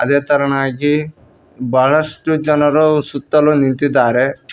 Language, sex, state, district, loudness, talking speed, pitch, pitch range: Kannada, male, Karnataka, Koppal, -14 LUFS, 80 wpm, 145 Hz, 135-150 Hz